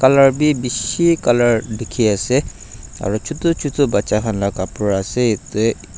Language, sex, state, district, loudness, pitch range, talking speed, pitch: Nagamese, male, Nagaland, Dimapur, -17 LUFS, 105-135 Hz, 140 wpm, 115 Hz